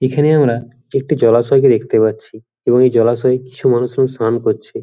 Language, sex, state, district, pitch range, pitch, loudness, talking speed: Bengali, male, West Bengal, Jhargram, 115-130 Hz, 125 Hz, -14 LUFS, 160 wpm